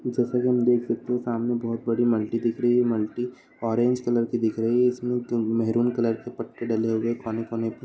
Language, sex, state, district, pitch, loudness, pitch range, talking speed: Hindi, male, Uttar Pradesh, Deoria, 120 Hz, -25 LUFS, 115-125 Hz, 220 wpm